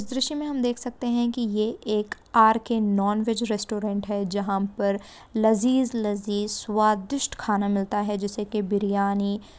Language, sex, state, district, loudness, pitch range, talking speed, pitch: Hindi, female, Andhra Pradesh, Guntur, -25 LUFS, 205-230 Hz, 165 wpm, 215 Hz